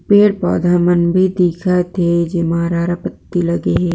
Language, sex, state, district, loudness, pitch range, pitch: Chhattisgarhi, female, Chhattisgarh, Jashpur, -15 LUFS, 170-180 Hz, 175 Hz